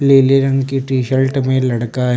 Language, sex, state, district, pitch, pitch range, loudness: Hindi, male, Uttar Pradesh, Shamli, 130 Hz, 130-135 Hz, -15 LUFS